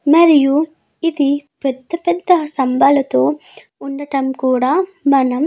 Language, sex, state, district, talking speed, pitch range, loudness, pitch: Telugu, female, Andhra Pradesh, Guntur, 100 wpm, 265-320 Hz, -15 LUFS, 280 Hz